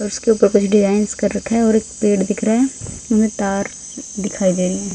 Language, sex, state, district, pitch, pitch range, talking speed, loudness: Hindi, female, Haryana, Rohtak, 210 Hz, 200-220 Hz, 230 wpm, -17 LUFS